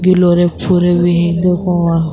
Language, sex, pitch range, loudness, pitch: Urdu, female, 170-180 Hz, -13 LUFS, 175 Hz